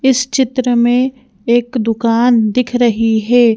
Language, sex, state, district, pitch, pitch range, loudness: Hindi, female, Madhya Pradesh, Bhopal, 240 Hz, 230-250 Hz, -13 LUFS